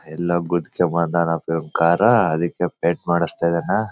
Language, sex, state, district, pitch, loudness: Kannada, male, Karnataka, Bellary, 85 Hz, -20 LUFS